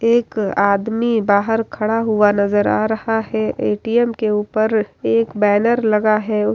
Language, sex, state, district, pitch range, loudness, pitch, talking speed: Hindi, female, Bihar, Kishanganj, 210-225 Hz, -17 LUFS, 215 Hz, 145 wpm